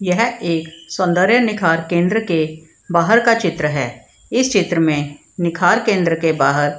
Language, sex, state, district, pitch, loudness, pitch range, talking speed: Hindi, female, Bihar, Madhepura, 170 Hz, -17 LUFS, 160-200 Hz, 150 wpm